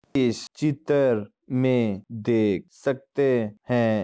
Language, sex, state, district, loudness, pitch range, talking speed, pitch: Hindi, male, Uttar Pradesh, Muzaffarnagar, -25 LUFS, 110-135 Hz, 90 wpm, 120 Hz